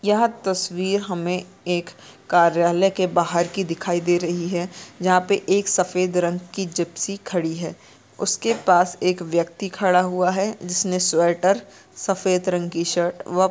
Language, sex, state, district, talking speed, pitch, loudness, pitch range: Hindi, female, Chhattisgarh, Sarguja, 160 wpm, 180 Hz, -21 LUFS, 175-190 Hz